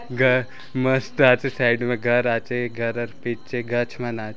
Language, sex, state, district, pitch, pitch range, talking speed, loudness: Halbi, male, Chhattisgarh, Bastar, 120 Hz, 120-130 Hz, 180 wpm, -22 LUFS